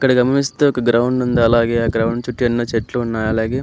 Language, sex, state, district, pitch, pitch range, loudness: Telugu, male, Andhra Pradesh, Anantapur, 120 Hz, 115-125 Hz, -17 LUFS